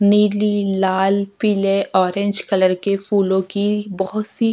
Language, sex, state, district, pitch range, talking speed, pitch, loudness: Hindi, female, Uttarakhand, Tehri Garhwal, 190-205 Hz, 145 wpm, 200 Hz, -18 LUFS